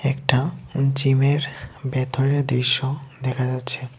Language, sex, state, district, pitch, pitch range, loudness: Bengali, male, Tripura, West Tripura, 135 Hz, 130-140 Hz, -22 LUFS